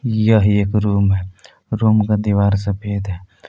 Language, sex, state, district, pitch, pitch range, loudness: Hindi, male, Jharkhand, Palamu, 100 Hz, 100-105 Hz, -17 LUFS